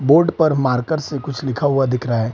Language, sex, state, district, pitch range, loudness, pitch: Hindi, male, Bihar, Samastipur, 125-150 Hz, -18 LUFS, 140 Hz